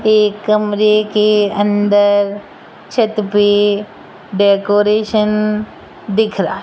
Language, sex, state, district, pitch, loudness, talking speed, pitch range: Hindi, female, Rajasthan, Jaipur, 210 Hz, -14 LUFS, 90 wpm, 205-215 Hz